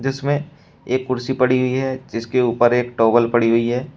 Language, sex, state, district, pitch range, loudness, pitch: Hindi, male, Uttar Pradesh, Shamli, 120-130 Hz, -18 LUFS, 125 Hz